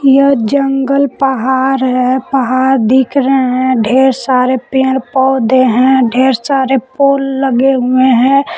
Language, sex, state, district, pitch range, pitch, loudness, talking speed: Hindi, female, Jharkhand, Palamu, 255-270 Hz, 265 Hz, -11 LUFS, 135 wpm